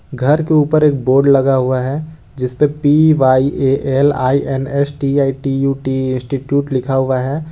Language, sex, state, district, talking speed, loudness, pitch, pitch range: Hindi, male, Jharkhand, Garhwa, 205 wpm, -15 LUFS, 135 Hz, 130-145 Hz